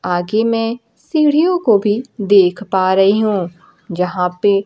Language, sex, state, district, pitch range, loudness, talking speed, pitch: Hindi, female, Bihar, Kaimur, 185-230 Hz, -15 LUFS, 140 wpm, 205 Hz